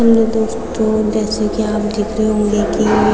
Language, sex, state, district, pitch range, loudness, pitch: Hindi, female, Uttarakhand, Tehri Garhwal, 215-220 Hz, -16 LUFS, 220 Hz